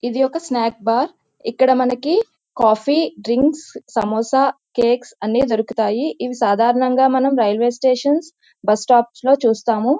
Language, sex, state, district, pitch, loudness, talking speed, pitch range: Telugu, female, Andhra Pradesh, Visakhapatnam, 250 Hz, -17 LUFS, 140 wpm, 230-275 Hz